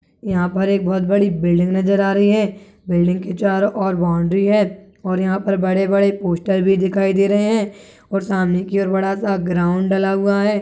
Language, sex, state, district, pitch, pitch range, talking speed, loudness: Hindi, male, Chhattisgarh, Balrampur, 195 Hz, 185-200 Hz, 210 wpm, -18 LUFS